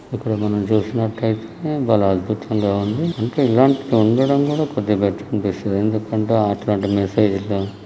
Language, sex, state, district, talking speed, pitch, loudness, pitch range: Telugu, male, Telangana, Karimnagar, 145 wpm, 110 Hz, -19 LUFS, 100-115 Hz